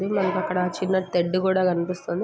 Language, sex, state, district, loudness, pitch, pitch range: Telugu, female, Andhra Pradesh, Guntur, -24 LUFS, 185 Hz, 180-190 Hz